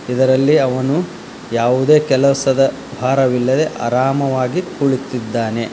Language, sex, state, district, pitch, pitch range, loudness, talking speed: Kannada, male, Karnataka, Dharwad, 130 Hz, 125-135 Hz, -16 LUFS, 75 wpm